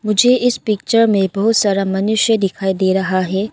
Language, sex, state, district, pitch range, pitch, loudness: Hindi, female, Arunachal Pradesh, Lower Dibang Valley, 190-220 Hz, 205 Hz, -15 LUFS